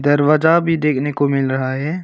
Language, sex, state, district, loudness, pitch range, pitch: Hindi, male, Arunachal Pradesh, Longding, -16 LUFS, 140-160 Hz, 145 Hz